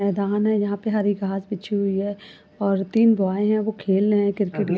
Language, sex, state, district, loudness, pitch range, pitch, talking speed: Hindi, female, Uttar Pradesh, Budaun, -22 LUFS, 195-210 Hz, 205 Hz, 240 wpm